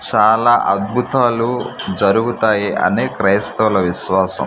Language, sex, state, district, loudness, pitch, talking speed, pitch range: Telugu, male, Andhra Pradesh, Manyam, -16 LUFS, 110 Hz, 80 wpm, 100-120 Hz